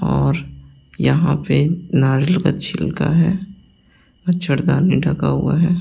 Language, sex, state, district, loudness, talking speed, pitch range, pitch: Hindi, male, Delhi, New Delhi, -18 LUFS, 125 wpm, 140-175 Hz, 160 Hz